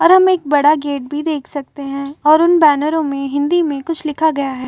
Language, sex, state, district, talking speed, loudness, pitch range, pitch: Hindi, female, Uttar Pradesh, Muzaffarnagar, 245 wpm, -15 LUFS, 280-320 Hz, 295 Hz